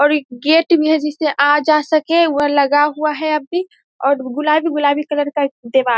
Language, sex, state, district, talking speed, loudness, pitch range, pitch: Hindi, female, Bihar, Vaishali, 210 wpm, -16 LUFS, 285-310 Hz, 295 Hz